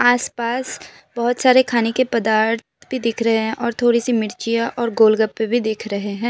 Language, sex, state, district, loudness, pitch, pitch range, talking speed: Hindi, female, Assam, Kamrup Metropolitan, -19 LUFS, 230 Hz, 220-240 Hz, 210 wpm